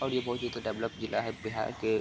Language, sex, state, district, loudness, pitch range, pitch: Hindi, male, Bihar, Kishanganj, -34 LUFS, 110-120 Hz, 115 Hz